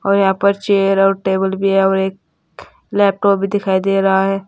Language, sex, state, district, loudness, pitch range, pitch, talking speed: Hindi, female, Uttar Pradesh, Saharanpur, -15 LUFS, 195-200 Hz, 195 Hz, 200 wpm